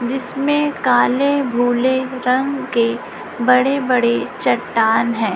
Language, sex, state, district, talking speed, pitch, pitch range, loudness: Hindi, female, Chhattisgarh, Raipur, 100 wpm, 255 Hz, 235-270 Hz, -17 LUFS